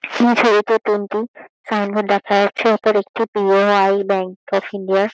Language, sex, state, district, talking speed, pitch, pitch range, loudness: Bengali, female, West Bengal, Kolkata, 165 wpm, 205 Hz, 200-220 Hz, -17 LUFS